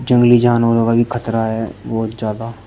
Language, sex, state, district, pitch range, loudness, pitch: Hindi, male, Uttar Pradesh, Shamli, 115-120 Hz, -16 LUFS, 115 Hz